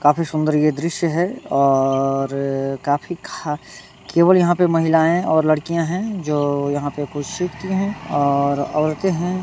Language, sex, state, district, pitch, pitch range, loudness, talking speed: Hindi, male, Bihar, Muzaffarpur, 155 Hz, 145-175 Hz, -19 LUFS, 155 wpm